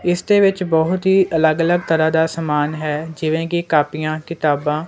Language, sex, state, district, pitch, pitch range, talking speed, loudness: Punjabi, male, Punjab, Kapurthala, 160 Hz, 155-175 Hz, 185 wpm, -17 LUFS